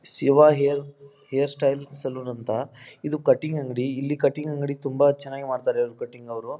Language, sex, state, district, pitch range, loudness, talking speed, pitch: Kannada, male, Karnataka, Dharwad, 135-145 Hz, -24 LUFS, 145 wpm, 140 Hz